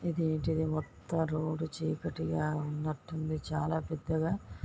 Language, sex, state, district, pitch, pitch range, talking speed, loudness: Telugu, female, Andhra Pradesh, Guntur, 155 Hz, 155-160 Hz, 90 wpm, -34 LUFS